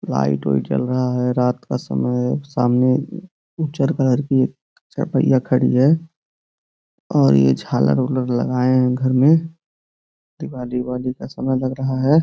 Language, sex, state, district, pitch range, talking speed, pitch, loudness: Hindi, male, Uttar Pradesh, Gorakhpur, 125-135 Hz, 145 wpm, 130 Hz, -19 LUFS